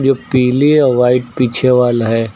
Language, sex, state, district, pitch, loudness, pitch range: Hindi, male, Uttar Pradesh, Lucknow, 125 Hz, -12 LUFS, 120-130 Hz